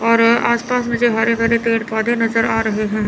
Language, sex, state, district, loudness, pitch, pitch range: Hindi, male, Chandigarh, Chandigarh, -16 LUFS, 230 Hz, 225-235 Hz